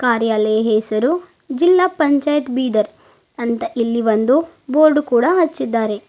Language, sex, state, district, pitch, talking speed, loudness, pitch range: Kannada, female, Karnataka, Bidar, 255 Hz, 120 wpm, -17 LUFS, 225-310 Hz